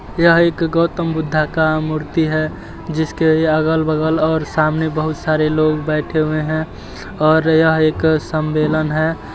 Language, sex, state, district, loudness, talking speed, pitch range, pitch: Hindi, male, Uttar Pradesh, Jyotiba Phule Nagar, -16 LUFS, 145 wpm, 155-160 Hz, 155 Hz